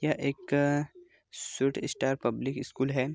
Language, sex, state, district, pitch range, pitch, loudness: Hindi, male, Bihar, Araria, 135-145 Hz, 140 Hz, -31 LUFS